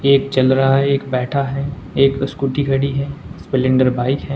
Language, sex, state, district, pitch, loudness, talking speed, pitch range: Hindi, male, Uttar Pradesh, Saharanpur, 135 Hz, -17 LUFS, 195 wpm, 130-140 Hz